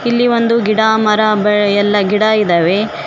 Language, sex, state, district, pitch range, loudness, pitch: Kannada, female, Karnataka, Koppal, 205-220 Hz, -12 LUFS, 215 Hz